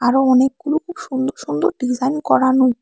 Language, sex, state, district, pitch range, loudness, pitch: Bengali, female, Tripura, West Tripura, 255-305 Hz, -18 LUFS, 265 Hz